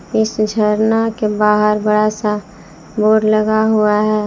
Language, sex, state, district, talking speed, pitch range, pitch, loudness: Hindi, female, Jharkhand, Palamu, 140 wpm, 210-215 Hz, 215 Hz, -15 LUFS